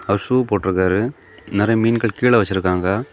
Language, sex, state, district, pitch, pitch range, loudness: Tamil, male, Tamil Nadu, Kanyakumari, 105 Hz, 95-115 Hz, -18 LUFS